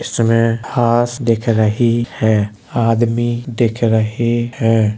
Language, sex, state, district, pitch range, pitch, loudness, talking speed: Hindi, male, Uttar Pradesh, Jalaun, 110-120 Hz, 115 Hz, -16 LUFS, 110 wpm